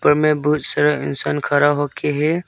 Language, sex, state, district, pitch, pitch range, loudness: Hindi, male, Arunachal Pradesh, Longding, 145 Hz, 145-150 Hz, -18 LUFS